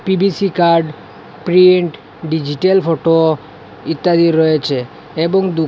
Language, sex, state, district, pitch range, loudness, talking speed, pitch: Bengali, male, Assam, Hailakandi, 160-180 Hz, -14 LUFS, 95 wpm, 165 Hz